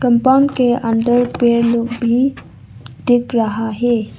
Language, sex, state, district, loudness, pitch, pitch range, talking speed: Hindi, female, Arunachal Pradesh, Lower Dibang Valley, -15 LUFS, 240 Hz, 235-245 Hz, 130 wpm